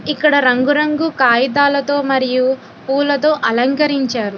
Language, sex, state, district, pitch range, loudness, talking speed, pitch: Telugu, female, Telangana, Hyderabad, 255-290 Hz, -15 LUFS, 80 wpm, 275 Hz